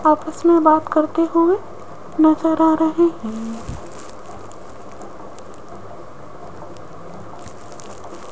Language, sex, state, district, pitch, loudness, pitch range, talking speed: Hindi, female, Rajasthan, Jaipur, 315 Hz, -17 LUFS, 310-330 Hz, 65 wpm